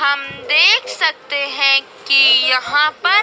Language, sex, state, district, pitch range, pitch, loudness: Hindi, female, Madhya Pradesh, Dhar, 275-290 Hz, 280 Hz, -13 LUFS